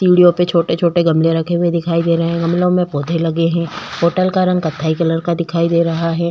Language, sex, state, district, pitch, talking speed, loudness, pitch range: Hindi, female, Chhattisgarh, Korba, 170 Hz, 245 wpm, -15 LUFS, 165-175 Hz